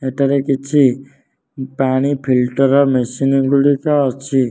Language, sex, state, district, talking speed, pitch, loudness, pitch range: Odia, male, Odisha, Nuapada, 95 wpm, 135 Hz, -15 LUFS, 130-140 Hz